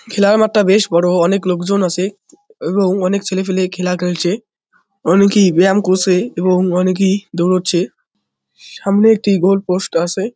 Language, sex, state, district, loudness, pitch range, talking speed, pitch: Bengali, male, West Bengal, Jalpaiguri, -14 LUFS, 180-205 Hz, 125 wpm, 190 Hz